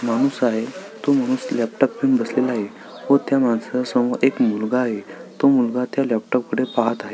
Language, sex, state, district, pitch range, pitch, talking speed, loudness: Marathi, male, Maharashtra, Sindhudurg, 115-140 Hz, 125 Hz, 195 wpm, -20 LUFS